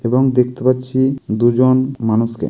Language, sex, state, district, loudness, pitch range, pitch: Bengali, male, West Bengal, Kolkata, -16 LUFS, 115-130 Hz, 125 Hz